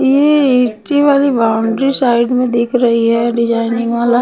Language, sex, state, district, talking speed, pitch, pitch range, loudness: Hindi, female, Bihar, Patna, 155 wpm, 240 Hz, 235-270 Hz, -13 LUFS